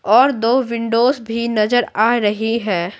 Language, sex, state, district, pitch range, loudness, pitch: Hindi, female, Bihar, Patna, 215-240 Hz, -17 LUFS, 230 Hz